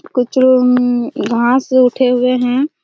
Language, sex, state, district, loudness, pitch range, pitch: Hindi, female, Chhattisgarh, Raigarh, -13 LUFS, 245-260 Hz, 255 Hz